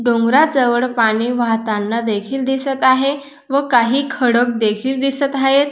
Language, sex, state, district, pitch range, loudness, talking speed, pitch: Marathi, female, Maharashtra, Dhule, 230-275 Hz, -16 LUFS, 125 wpm, 255 Hz